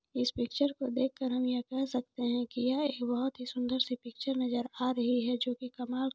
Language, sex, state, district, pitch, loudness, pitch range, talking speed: Hindi, female, Jharkhand, Jamtara, 250 Hz, -33 LUFS, 245-260 Hz, 235 wpm